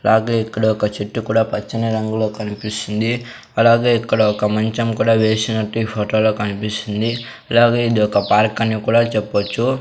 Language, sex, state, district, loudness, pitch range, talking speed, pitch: Telugu, male, Andhra Pradesh, Sri Satya Sai, -18 LUFS, 105-115 Hz, 160 wpm, 110 Hz